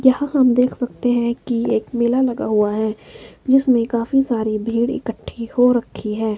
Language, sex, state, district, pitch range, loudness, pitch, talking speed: Hindi, female, Himachal Pradesh, Shimla, 225-255 Hz, -19 LUFS, 235 Hz, 180 wpm